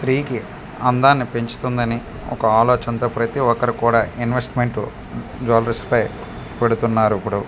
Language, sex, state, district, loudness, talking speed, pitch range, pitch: Telugu, male, Andhra Pradesh, Manyam, -19 LUFS, 105 wpm, 115-125 Hz, 120 Hz